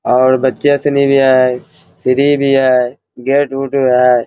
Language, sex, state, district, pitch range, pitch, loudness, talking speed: Hindi, male, Bihar, Bhagalpur, 125-140 Hz, 130 Hz, -12 LUFS, 155 wpm